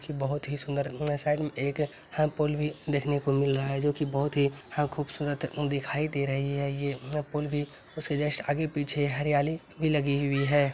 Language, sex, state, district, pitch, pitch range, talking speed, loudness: Maithili, male, Bihar, Araria, 145 Hz, 140-150 Hz, 200 wpm, -29 LUFS